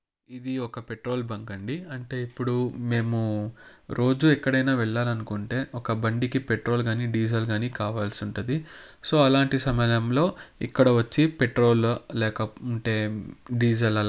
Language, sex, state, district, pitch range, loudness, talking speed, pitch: Telugu, male, Andhra Pradesh, Anantapur, 110-130 Hz, -25 LUFS, 130 wpm, 120 Hz